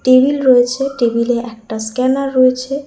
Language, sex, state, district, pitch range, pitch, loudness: Bengali, female, West Bengal, Alipurduar, 235-270 Hz, 255 Hz, -14 LUFS